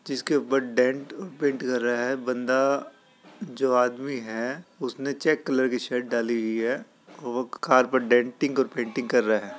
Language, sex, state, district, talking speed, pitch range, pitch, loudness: Hindi, male, Uttar Pradesh, Etah, 175 wpm, 120-135 Hz, 130 Hz, -25 LUFS